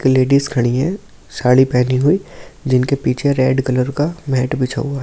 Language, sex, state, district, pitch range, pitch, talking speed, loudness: Hindi, male, Delhi, New Delhi, 130-145 Hz, 130 Hz, 190 wpm, -16 LUFS